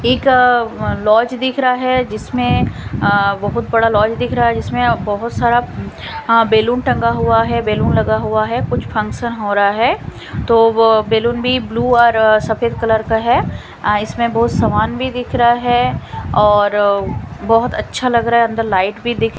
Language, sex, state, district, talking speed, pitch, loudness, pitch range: Hindi, female, Punjab, Kapurthala, 180 wpm, 225 Hz, -15 LUFS, 210-240 Hz